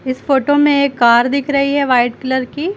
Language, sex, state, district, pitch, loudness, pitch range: Hindi, female, Uttar Pradesh, Lucknow, 275 Hz, -14 LUFS, 255-285 Hz